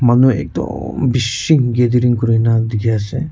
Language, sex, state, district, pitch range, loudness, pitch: Nagamese, male, Nagaland, Kohima, 115-125 Hz, -15 LUFS, 120 Hz